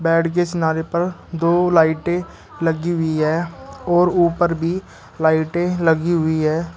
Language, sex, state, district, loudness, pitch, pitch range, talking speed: Hindi, male, Uttar Pradesh, Shamli, -19 LUFS, 165 Hz, 160-175 Hz, 140 wpm